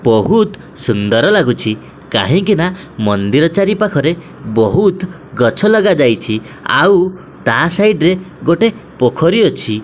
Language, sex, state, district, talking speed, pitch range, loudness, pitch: Odia, male, Odisha, Khordha, 100 wpm, 115-190 Hz, -13 LUFS, 165 Hz